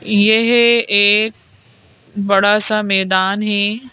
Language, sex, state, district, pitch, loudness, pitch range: Hindi, female, Madhya Pradesh, Bhopal, 210 Hz, -13 LUFS, 200-220 Hz